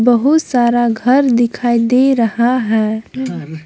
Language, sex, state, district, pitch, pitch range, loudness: Hindi, female, Jharkhand, Palamu, 240 Hz, 230-255 Hz, -14 LUFS